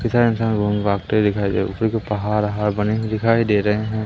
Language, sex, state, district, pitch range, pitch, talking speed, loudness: Hindi, male, Madhya Pradesh, Umaria, 105-110 Hz, 105 Hz, 220 wpm, -20 LUFS